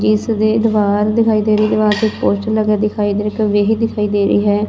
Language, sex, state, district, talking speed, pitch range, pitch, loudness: Punjabi, female, Punjab, Fazilka, 230 wpm, 210-215 Hz, 215 Hz, -15 LUFS